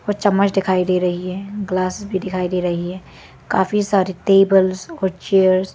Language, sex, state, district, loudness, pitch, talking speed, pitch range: Hindi, female, Arunachal Pradesh, Lower Dibang Valley, -18 LUFS, 190 Hz, 190 wpm, 180-195 Hz